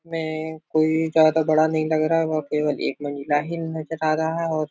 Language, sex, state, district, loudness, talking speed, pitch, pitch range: Hindi, male, Bihar, Supaul, -22 LUFS, 240 wpm, 155 Hz, 155-160 Hz